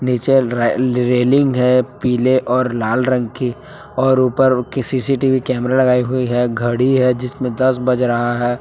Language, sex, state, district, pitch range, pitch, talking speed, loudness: Hindi, male, Jharkhand, Palamu, 125-130 Hz, 125 Hz, 175 wpm, -16 LUFS